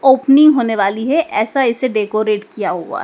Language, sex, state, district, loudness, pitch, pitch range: Hindi, male, Madhya Pradesh, Dhar, -15 LUFS, 240 Hz, 215-270 Hz